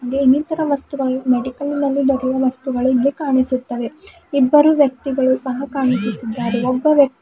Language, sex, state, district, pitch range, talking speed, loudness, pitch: Kannada, female, Karnataka, Bidar, 255-285 Hz, 115 wpm, -18 LUFS, 265 Hz